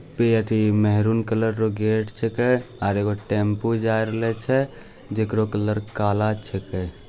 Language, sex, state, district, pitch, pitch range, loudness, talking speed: Angika, male, Bihar, Bhagalpur, 110 Hz, 105-115 Hz, -23 LUFS, 150 wpm